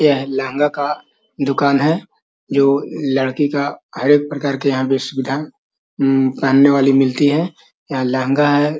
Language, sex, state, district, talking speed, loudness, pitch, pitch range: Magahi, male, Bihar, Gaya, 155 wpm, -17 LUFS, 140 Hz, 135-145 Hz